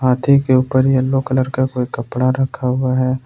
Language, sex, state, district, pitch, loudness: Hindi, male, Jharkhand, Ranchi, 130 Hz, -16 LUFS